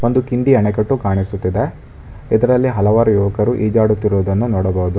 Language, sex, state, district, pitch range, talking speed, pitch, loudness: Kannada, male, Karnataka, Bangalore, 100-120 Hz, 110 wpm, 105 Hz, -16 LUFS